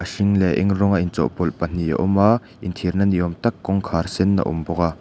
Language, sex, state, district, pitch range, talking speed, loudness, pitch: Mizo, male, Mizoram, Aizawl, 85-100 Hz, 275 wpm, -20 LUFS, 95 Hz